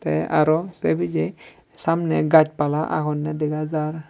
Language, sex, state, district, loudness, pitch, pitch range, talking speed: Chakma, male, Tripura, Dhalai, -21 LUFS, 155 Hz, 145-155 Hz, 145 wpm